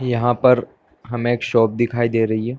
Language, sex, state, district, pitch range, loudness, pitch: Hindi, male, Bihar, Darbhanga, 115-120 Hz, -18 LUFS, 120 Hz